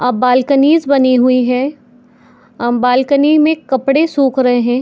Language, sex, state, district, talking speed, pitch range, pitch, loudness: Hindi, female, Chhattisgarh, Bilaspur, 150 wpm, 250-280 Hz, 260 Hz, -12 LUFS